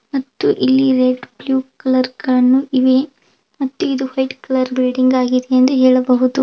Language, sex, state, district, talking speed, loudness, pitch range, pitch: Kannada, female, Karnataka, Belgaum, 140 wpm, -15 LUFS, 255-265 Hz, 260 Hz